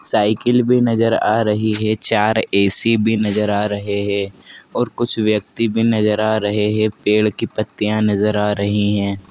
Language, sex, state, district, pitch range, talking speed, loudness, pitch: Hindi, male, Madhya Pradesh, Dhar, 105-110 Hz, 180 wpm, -17 LUFS, 105 Hz